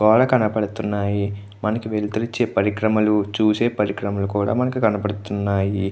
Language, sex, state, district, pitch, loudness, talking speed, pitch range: Telugu, male, Andhra Pradesh, Krishna, 105 Hz, -21 LUFS, 90 wpm, 100-110 Hz